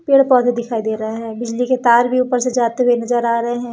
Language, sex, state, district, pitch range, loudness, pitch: Hindi, female, Madhya Pradesh, Umaria, 235-250 Hz, -16 LUFS, 240 Hz